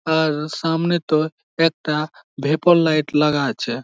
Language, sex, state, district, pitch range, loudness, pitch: Bengali, male, West Bengal, Malda, 150-165 Hz, -19 LUFS, 155 Hz